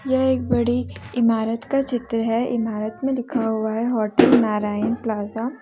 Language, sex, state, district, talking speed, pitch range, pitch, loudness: Hindi, female, Jharkhand, Deoghar, 170 wpm, 220-250 Hz, 230 Hz, -21 LUFS